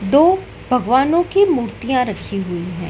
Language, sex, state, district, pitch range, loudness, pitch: Hindi, female, Madhya Pradesh, Dhar, 195-325 Hz, -17 LUFS, 250 Hz